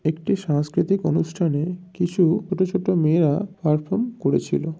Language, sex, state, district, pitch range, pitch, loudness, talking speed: Bengali, male, West Bengal, North 24 Parganas, 155-185 Hz, 170 Hz, -22 LUFS, 115 wpm